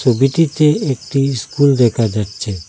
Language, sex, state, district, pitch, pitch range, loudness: Bengali, male, Assam, Hailakandi, 135 Hz, 115-145 Hz, -15 LUFS